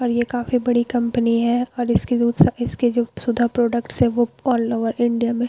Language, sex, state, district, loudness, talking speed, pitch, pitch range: Hindi, female, Bihar, Vaishali, -20 LUFS, 220 wpm, 240 Hz, 235-245 Hz